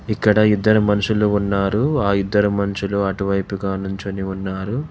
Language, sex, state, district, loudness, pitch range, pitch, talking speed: Telugu, male, Telangana, Hyderabad, -19 LUFS, 100-105 Hz, 100 Hz, 120 wpm